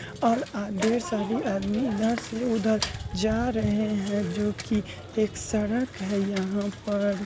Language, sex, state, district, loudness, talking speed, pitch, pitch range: Hindi, female, Bihar, Muzaffarpur, -27 LUFS, 140 wpm, 215 Hz, 205-230 Hz